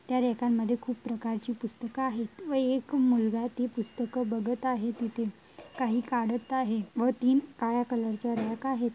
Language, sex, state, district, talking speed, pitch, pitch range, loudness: Marathi, female, Maharashtra, Dhule, 170 wpm, 240 Hz, 230-255 Hz, -30 LUFS